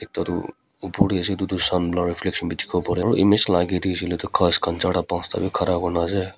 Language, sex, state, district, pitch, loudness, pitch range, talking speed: Nagamese, female, Nagaland, Kohima, 90 Hz, -21 LUFS, 85-95 Hz, 265 wpm